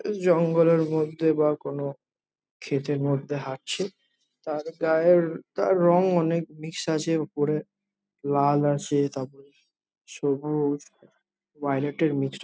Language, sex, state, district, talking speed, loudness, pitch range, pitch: Bengali, male, West Bengal, Jhargram, 110 wpm, -25 LUFS, 145-165 Hz, 155 Hz